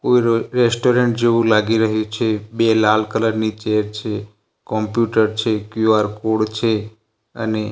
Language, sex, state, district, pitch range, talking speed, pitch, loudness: Gujarati, male, Gujarat, Gandhinagar, 110-115 Hz, 145 wpm, 110 Hz, -18 LUFS